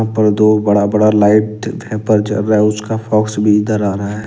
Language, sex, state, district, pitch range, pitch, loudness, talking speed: Hindi, male, Jharkhand, Ranchi, 105-110 Hz, 105 Hz, -13 LUFS, 225 wpm